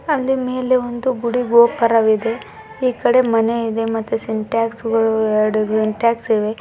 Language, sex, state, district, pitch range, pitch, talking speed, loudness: Kannada, female, Karnataka, Bijapur, 220-245 Hz, 230 Hz, 120 wpm, -17 LUFS